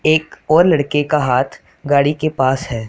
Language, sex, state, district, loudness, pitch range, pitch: Hindi, male, Punjab, Pathankot, -16 LUFS, 135-155 Hz, 145 Hz